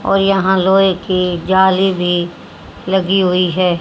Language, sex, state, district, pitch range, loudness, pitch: Hindi, female, Haryana, Rohtak, 180-190 Hz, -14 LUFS, 185 Hz